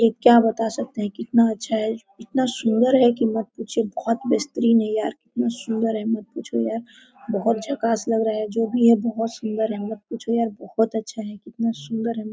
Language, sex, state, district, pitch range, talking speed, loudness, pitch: Hindi, female, Jharkhand, Sahebganj, 220-235 Hz, 200 wpm, -22 LUFS, 225 Hz